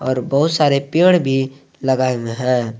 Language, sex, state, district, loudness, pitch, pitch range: Hindi, male, Jharkhand, Garhwa, -17 LUFS, 135 Hz, 125-140 Hz